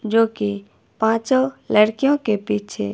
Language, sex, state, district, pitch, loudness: Hindi, female, Himachal Pradesh, Shimla, 215 Hz, -20 LUFS